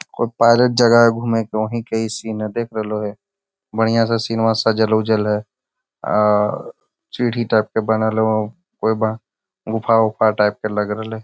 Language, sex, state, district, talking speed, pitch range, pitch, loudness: Magahi, male, Bihar, Gaya, 165 wpm, 110-115 Hz, 110 Hz, -18 LUFS